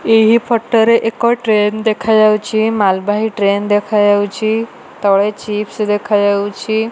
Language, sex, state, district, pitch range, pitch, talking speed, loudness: Odia, female, Odisha, Malkangiri, 205-225 Hz, 215 Hz, 95 wpm, -14 LUFS